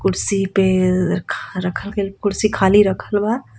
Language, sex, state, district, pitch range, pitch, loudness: Bhojpuri, female, Jharkhand, Palamu, 185-205 Hz, 195 Hz, -18 LUFS